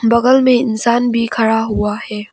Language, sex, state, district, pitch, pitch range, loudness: Hindi, female, Arunachal Pradesh, Papum Pare, 230 Hz, 220-240 Hz, -14 LUFS